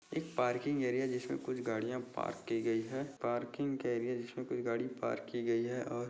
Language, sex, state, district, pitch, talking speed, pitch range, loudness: Hindi, male, Maharashtra, Dhule, 125 Hz, 205 wpm, 120-130 Hz, -37 LUFS